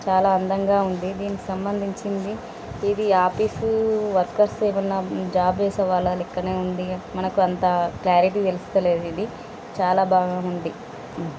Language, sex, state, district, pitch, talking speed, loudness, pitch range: Telugu, female, Telangana, Nalgonda, 190 Hz, 110 wpm, -23 LUFS, 180-200 Hz